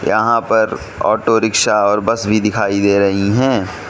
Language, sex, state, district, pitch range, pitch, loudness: Hindi, male, Manipur, Imphal West, 100-115 Hz, 105 Hz, -15 LUFS